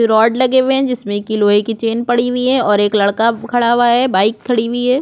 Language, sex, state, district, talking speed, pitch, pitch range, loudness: Hindi, female, Chhattisgarh, Korba, 275 wpm, 235 Hz, 215-250 Hz, -14 LUFS